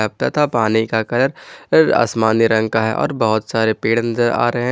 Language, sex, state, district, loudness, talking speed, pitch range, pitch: Hindi, male, Jharkhand, Ranchi, -17 LUFS, 205 wpm, 110-120 Hz, 115 Hz